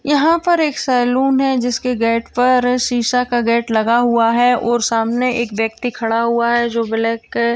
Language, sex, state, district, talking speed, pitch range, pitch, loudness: Hindi, female, Uttar Pradesh, Hamirpur, 190 wpm, 230-250 Hz, 240 Hz, -16 LUFS